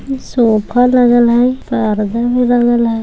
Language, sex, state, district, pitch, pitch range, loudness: Maithili, female, Bihar, Samastipur, 240 Hz, 230-250 Hz, -12 LUFS